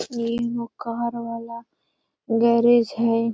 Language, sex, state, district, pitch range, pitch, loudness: Magahi, female, Bihar, Gaya, 230-235 Hz, 235 Hz, -22 LUFS